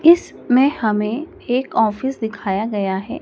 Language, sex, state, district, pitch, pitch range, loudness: Hindi, male, Madhya Pradesh, Dhar, 235 Hz, 210-275 Hz, -19 LUFS